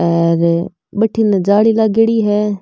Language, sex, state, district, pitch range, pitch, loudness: Marwari, female, Rajasthan, Nagaur, 170-220 Hz, 205 Hz, -14 LUFS